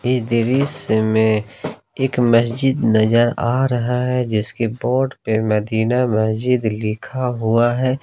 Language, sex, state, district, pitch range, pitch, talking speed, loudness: Hindi, male, Jharkhand, Ranchi, 110-125 Hz, 120 Hz, 125 wpm, -18 LUFS